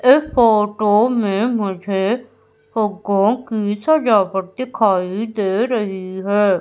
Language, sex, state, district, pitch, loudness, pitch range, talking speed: Hindi, female, Madhya Pradesh, Umaria, 210 Hz, -18 LUFS, 195-235 Hz, 100 wpm